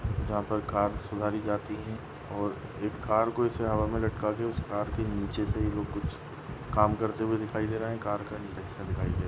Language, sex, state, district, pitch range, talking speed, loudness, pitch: Hindi, male, Maharashtra, Sindhudurg, 105-110 Hz, 235 wpm, -31 LUFS, 105 Hz